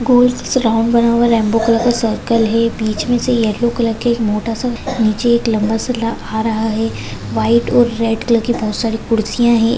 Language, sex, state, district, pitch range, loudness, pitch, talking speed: Hindi, female, Maharashtra, Dhule, 220-235 Hz, -15 LUFS, 230 Hz, 195 wpm